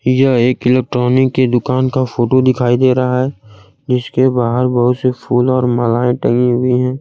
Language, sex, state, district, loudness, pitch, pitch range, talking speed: Hindi, male, Bihar, Kaimur, -14 LUFS, 125 Hz, 125-130 Hz, 180 wpm